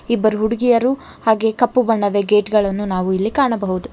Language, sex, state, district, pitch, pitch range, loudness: Kannada, female, Karnataka, Bangalore, 220 Hz, 205-235 Hz, -17 LUFS